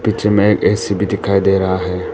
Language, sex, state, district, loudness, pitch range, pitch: Hindi, male, Arunachal Pradesh, Papum Pare, -15 LUFS, 95-105 Hz, 100 Hz